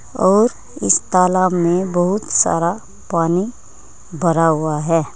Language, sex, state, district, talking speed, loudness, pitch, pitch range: Hindi, female, Uttar Pradesh, Saharanpur, 115 wpm, -16 LUFS, 175 Hz, 165-185 Hz